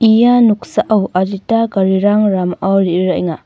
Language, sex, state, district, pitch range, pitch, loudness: Garo, female, Meghalaya, North Garo Hills, 190-220 Hz, 200 Hz, -13 LUFS